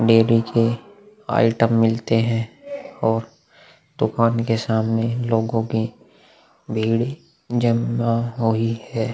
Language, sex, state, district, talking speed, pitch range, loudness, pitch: Hindi, male, Uttar Pradesh, Muzaffarnagar, 100 wpm, 115-120 Hz, -21 LUFS, 115 Hz